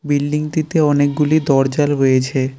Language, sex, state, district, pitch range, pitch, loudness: Bengali, male, West Bengal, Cooch Behar, 135-150 Hz, 145 Hz, -16 LUFS